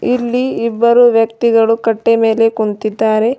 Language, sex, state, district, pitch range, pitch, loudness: Kannada, female, Karnataka, Bidar, 225-235 Hz, 225 Hz, -13 LUFS